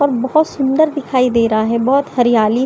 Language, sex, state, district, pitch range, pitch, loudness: Hindi, female, Maharashtra, Chandrapur, 235-285 Hz, 255 Hz, -14 LUFS